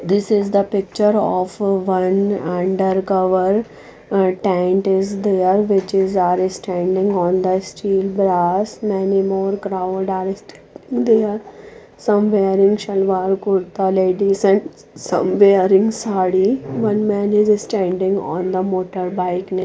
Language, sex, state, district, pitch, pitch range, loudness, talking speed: English, female, Odisha, Nuapada, 195 Hz, 185-200 Hz, -17 LUFS, 130 wpm